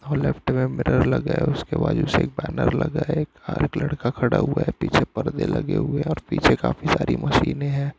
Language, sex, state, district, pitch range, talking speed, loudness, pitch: Hindi, male, Andhra Pradesh, Anantapur, 140-160 Hz, 215 wpm, -23 LUFS, 150 Hz